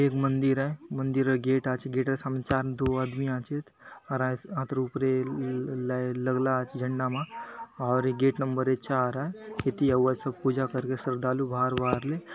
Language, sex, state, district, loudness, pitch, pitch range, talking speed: Halbi, male, Chhattisgarh, Bastar, -29 LUFS, 130 Hz, 130-135 Hz, 155 wpm